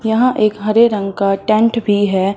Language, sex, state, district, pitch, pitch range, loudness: Hindi, female, Punjab, Fazilka, 215 Hz, 200-225 Hz, -14 LUFS